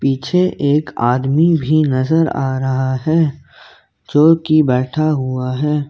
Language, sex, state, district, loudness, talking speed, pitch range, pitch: Hindi, male, Jharkhand, Ranchi, -15 LUFS, 130 wpm, 130-155 Hz, 145 Hz